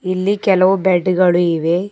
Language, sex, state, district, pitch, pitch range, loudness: Kannada, female, Karnataka, Bidar, 185 Hz, 175-195 Hz, -15 LUFS